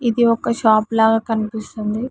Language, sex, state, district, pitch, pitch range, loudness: Telugu, female, Telangana, Hyderabad, 225 Hz, 220-235 Hz, -18 LUFS